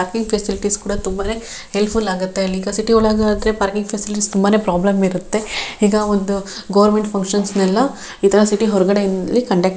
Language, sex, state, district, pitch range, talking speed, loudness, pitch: Kannada, female, Karnataka, Shimoga, 195-215 Hz, 125 wpm, -17 LUFS, 205 Hz